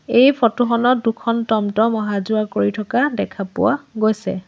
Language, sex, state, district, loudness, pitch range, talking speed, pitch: Assamese, female, Assam, Sonitpur, -18 LUFS, 210-245 Hz, 160 wpm, 225 Hz